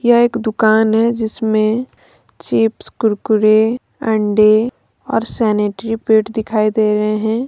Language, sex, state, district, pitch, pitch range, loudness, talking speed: Hindi, female, Jharkhand, Deoghar, 220 Hz, 215-225 Hz, -15 LUFS, 120 wpm